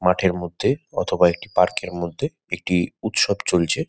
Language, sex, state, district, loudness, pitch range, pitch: Bengali, male, West Bengal, Kolkata, -22 LUFS, 85-90 Hz, 90 Hz